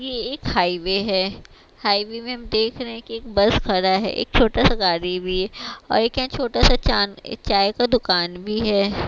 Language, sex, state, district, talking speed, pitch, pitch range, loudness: Hindi, female, Bihar, West Champaran, 210 wpm, 205 Hz, 190-230 Hz, -20 LUFS